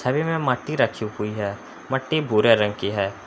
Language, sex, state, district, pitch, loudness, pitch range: Hindi, male, Jharkhand, Palamu, 110 Hz, -23 LUFS, 105-135 Hz